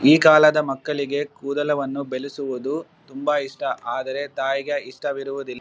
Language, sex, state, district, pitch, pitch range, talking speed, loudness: Kannada, male, Karnataka, Bellary, 140 Hz, 135-150 Hz, 130 wpm, -22 LUFS